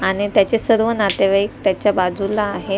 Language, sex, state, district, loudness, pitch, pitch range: Marathi, female, Maharashtra, Mumbai Suburban, -17 LUFS, 205 Hz, 195-225 Hz